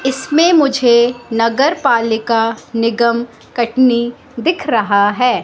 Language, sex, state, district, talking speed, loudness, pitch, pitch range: Hindi, female, Madhya Pradesh, Katni, 100 wpm, -14 LUFS, 240 Hz, 230-265 Hz